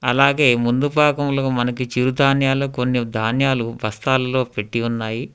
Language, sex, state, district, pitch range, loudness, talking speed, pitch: Telugu, male, Telangana, Hyderabad, 120-135 Hz, -19 LUFS, 110 wpm, 125 Hz